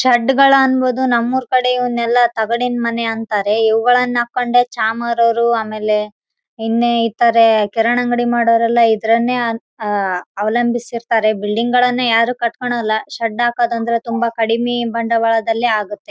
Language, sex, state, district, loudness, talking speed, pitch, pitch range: Kannada, female, Karnataka, Raichur, -15 LUFS, 80 wpm, 235 Hz, 225-240 Hz